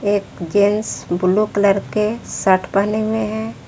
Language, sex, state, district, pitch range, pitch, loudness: Hindi, female, Jharkhand, Palamu, 195-215 Hz, 205 Hz, -18 LUFS